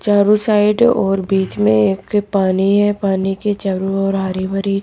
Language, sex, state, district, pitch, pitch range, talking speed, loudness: Hindi, female, Rajasthan, Jaipur, 195 Hz, 190-205 Hz, 175 wpm, -16 LUFS